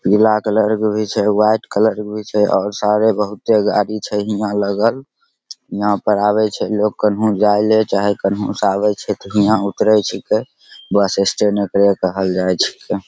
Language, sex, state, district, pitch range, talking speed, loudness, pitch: Maithili, male, Bihar, Begusarai, 100-105 Hz, 175 wpm, -16 LUFS, 105 Hz